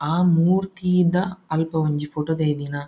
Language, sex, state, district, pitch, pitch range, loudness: Tulu, male, Karnataka, Dakshina Kannada, 160 Hz, 150-180 Hz, -21 LUFS